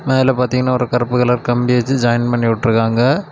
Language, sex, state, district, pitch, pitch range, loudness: Tamil, male, Tamil Nadu, Kanyakumari, 125 Hz, 120-125 Hz, -15 LUFS